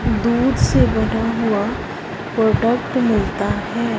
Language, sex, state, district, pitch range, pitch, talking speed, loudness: Hindi, female, Punjab, Fazilka, 220-235 Hz, 230 Hz, 105 wpm, -18 LUFS